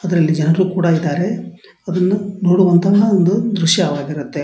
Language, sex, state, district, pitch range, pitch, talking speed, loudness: Kannada, male, Karnataka, Dharwad, 165-195 Hz, 180 Hz, 95 wpm, -15 LUFS